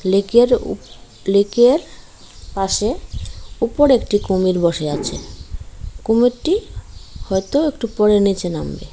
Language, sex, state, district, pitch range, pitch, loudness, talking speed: Bengali, female, Tripura, Dhalai, 170-240 Hz, 200 Hz, -17 LUFS, 100 wpm